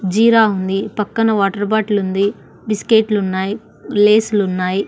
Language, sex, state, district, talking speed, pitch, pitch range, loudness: Telugu, female, Andhra Pradesh, Annamaya, 150 wpm, 210 Hz, 195-220 Hz, -16 LUFS